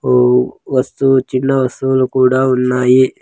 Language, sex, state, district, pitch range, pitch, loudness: Telugu, male, Andhra Pradesh, Sri Satya Sai, 125-130 Hz, 130 Hz, -13 LUFS